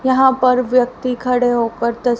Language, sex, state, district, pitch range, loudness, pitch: Hindi, female, Haryana, Rohtak, 240-255 Hz, -16 LUFS, 250 Hz